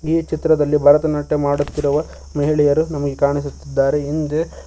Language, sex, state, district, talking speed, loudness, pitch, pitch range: Kannada, male, Karnataka, Koppal, 105 wpm, -18 LUFS, 150 Hz, 145-155 Hz